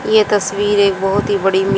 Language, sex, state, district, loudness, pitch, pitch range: Hindi, female, Haryana, Jhajjar, -15 LUFS, 200 Hz, 195-205 Hz